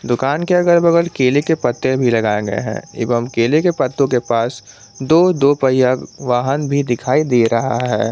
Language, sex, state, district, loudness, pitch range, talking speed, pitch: Hindi, male, Jharkhand, Garhwa, -16 LUFS, 120-145 Hz, 190 wpm, 130 Hz